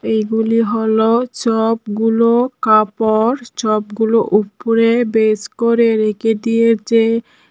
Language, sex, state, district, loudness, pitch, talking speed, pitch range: Bengali, female, Tripura, Dhalai, -15 LUFS, 225 Hz, 80 wpm, 220-230 Hz